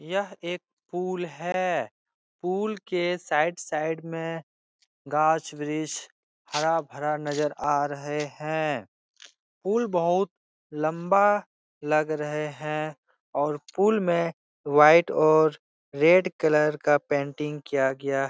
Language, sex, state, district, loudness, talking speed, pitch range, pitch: Hindi, male, Bihar, Jahanabad, -26 LUFS, 110 wpm, 150-175 Hz, 155 Hz